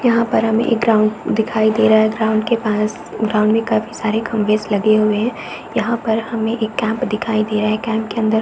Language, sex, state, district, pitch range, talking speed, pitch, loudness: Hindi, female, Bihar, East Champaran, 215-225 Hz, 235 wpm, 220 Hz, -17 LUFS